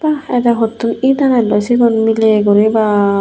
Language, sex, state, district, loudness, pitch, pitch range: Chakma, female, Tripura, Unakoti, -12 LUFS, 225 Hz, 210-245 Hz